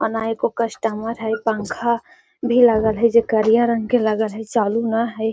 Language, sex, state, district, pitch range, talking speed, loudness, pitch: Magahi, female, Bihar, Gaya, 220-235 Hz, 200 wpm, -19 LUFS, 225 Hz